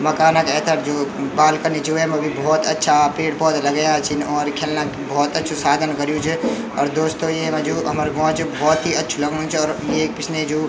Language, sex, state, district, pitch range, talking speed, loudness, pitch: Garhwali, male, Uttarakhand, Tehri Garhwal, 150-155 Hz, 220 wpm, -19 LUFS, 155 Hz